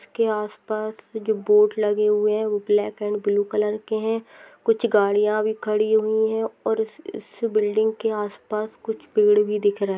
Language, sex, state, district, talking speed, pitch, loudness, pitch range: Hindi, female, Maharashtra, Dhule, 180 wpm, 215 Hz, -22 LUFS, 210-220 Hz